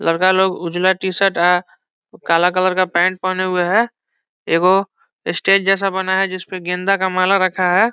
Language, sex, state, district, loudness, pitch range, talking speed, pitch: Hindi, male, Bihar, Saran, -16 LUFS, 180-195 Hz, 190 wpm, 185 Hz